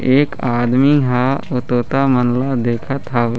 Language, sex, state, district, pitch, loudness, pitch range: Chhattisgarhi, male, Chhattisgarh, Raigarh, 125 Hz, -16 LUFS, 120-135 Hz